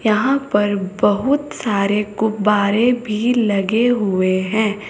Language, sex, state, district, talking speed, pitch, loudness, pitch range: Hindi, female, Uttar Pradesh, Saharanpur, 110 wpm, 210 Hz, -17 LUFS, 205-235 Hz